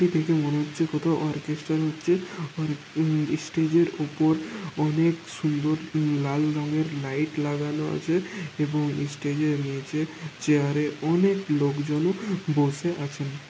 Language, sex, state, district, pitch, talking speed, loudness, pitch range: Bengali, male, West Bengal, Kolkata, 155 Hz, 120 wpm, -26 LUFS, 150-160 Hz